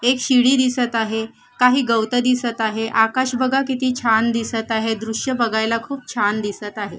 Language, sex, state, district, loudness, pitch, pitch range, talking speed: Marathi, female, Maharashtra, Sindhudurg, -19 LUFS, 235 Hz, 225-250 Hz, 170 wpm